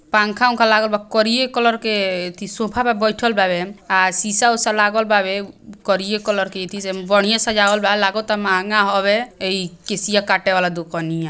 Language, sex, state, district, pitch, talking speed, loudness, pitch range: Bhojpuri, female, Bihar, Gopalganj, 205 Hz, 185 wpm, -18 LUFS, 190-220 Hz